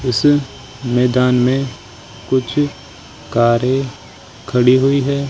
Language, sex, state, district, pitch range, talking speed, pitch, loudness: Hindi, male, Rajasthan, Jaipur, 120-135 Hz, 90 wpm, 125 Hz, -16 LUFS